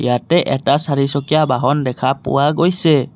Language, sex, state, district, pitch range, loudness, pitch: Assamese, male, Assam, Kamrup Metropolitan, 130-155 Hz, -16 LUFS, 140 Hz